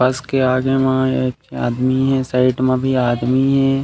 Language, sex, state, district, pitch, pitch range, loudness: Chhattisgarhi, male, Chhattisgarh, Raigarh, 130 Hz, 125-135 Hz, -17 LUFS